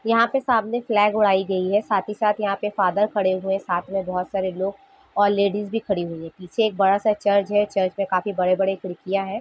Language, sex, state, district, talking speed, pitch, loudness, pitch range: Hindi, female, Jharkhand, Sahebganj, 250 wpm, 200 Hz, -22 LUFS, 190-210 Hz